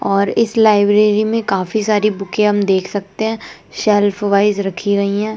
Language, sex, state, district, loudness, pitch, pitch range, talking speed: Hindi, female, Delhi, New Delhi, -15 LUFS, 205 Hz, 200-215 Hz, 180 wpm